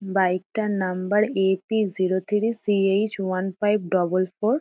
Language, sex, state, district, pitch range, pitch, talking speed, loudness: Bengali, female, West Bengal, Dakshin Dinajpur, 185-210 Hz, 195 Hz, 155 wpm, -23 LUFS